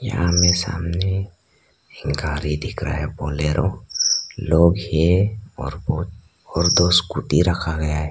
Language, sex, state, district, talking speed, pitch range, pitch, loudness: Hindi, male, Arunachal Pradesh, Lower Dibang Valley, 125 wpm, 75-90 Hz, 85 Hz, -20 LUFS